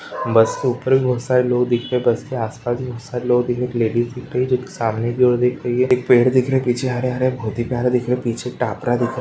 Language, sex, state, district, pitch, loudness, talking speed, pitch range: Hindi, female, Uttarakhand, Uttarkashi, 125 Hz, -19 LUFS, 350 wpm, 120-125 Hz